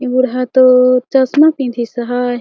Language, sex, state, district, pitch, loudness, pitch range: Chhattisgarhi, female, Chhattisgarh, Jashpur, 255 Hz, -12 LUFS, 245-260 Hz